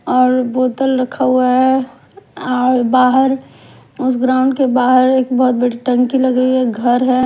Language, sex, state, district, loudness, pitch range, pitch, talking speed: Hindi, female, Punjab, Kapurthala, -14 LUFS, 250-260 Hz, 255 Hz, 155 wpm